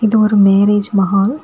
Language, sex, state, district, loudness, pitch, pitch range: Tamil, female, Tamil Nadu, Kanyakumari, -12 LUFS, 205 Hz, 195-215 Hz